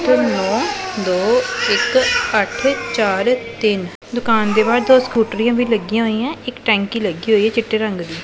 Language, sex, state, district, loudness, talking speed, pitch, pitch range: Punjabi, female, Punjab, Pathankot, -17 LUFS, 165 wpm, 230 Hz, 215-265 Hz